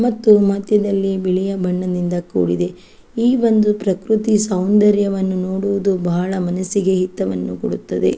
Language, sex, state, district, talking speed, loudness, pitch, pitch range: Kannada, female, Karnataka, Chamarajanagar, 105 wpm, -17 LUFS, 190 Hz, 185-210 Hz